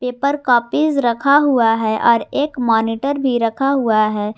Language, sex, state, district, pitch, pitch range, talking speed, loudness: Hindi, female, Jharkhand, Garhwa, 245 Hz, 225-280 Hz, 165 wpm, -16 LUFS